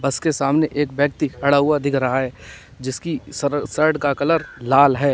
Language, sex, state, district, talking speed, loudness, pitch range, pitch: Hindi, male, Uttar Pradesh, Lalitpur, 200 wpm, -19 LUFS, 135-150 Hz, 140 Hz